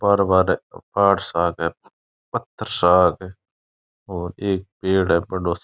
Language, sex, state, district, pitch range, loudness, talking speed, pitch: Rajasthani, male, Rajasthan, Churu, 85-95 Hz, -20 LUFS, 180 wpm, 95 Hz